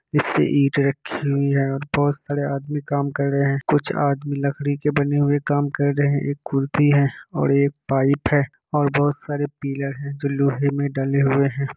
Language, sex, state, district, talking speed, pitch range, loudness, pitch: Hindi, male, Bihar, Kishanganj, 210 wpm, 140-145 Hz, -21 LUFS, 140 Hz